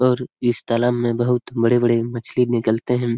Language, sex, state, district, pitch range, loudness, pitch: Hindi, male, Bihar, Lakhisarai, 115-125 Hz, -20 LUFS, 120 Hz